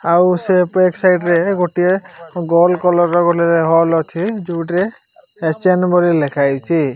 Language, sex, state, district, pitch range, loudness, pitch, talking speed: Odia, male, Odisha, Malkangiri, 165-180 Hz, -15 LUFS, 175 Hz, 140 wpm